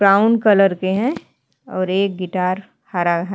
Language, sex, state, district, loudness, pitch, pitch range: Hindi, female, Uttarakhand, Tehri Garhwal, -18 LUFS, 190 Hz, 185-200 Hz